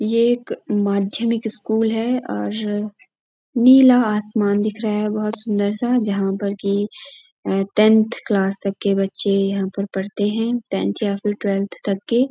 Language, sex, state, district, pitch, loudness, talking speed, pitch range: Hindi, female, Uttarakhand, Uttarkashi, 210 Hz, -20 LUFS, 155 wpm, 200-230 Hz